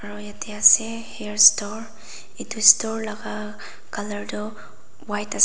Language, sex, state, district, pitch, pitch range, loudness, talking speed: Nagamese, female, Nagaland, Dimapur, 210 Hz, 210-220 Hz, -19 LUFS, 130 wpm